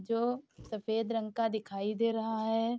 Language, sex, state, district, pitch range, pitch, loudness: Hindi, female, Bihar, Saharsa, 220-230 Hz, 225 Hz, -34 LUFS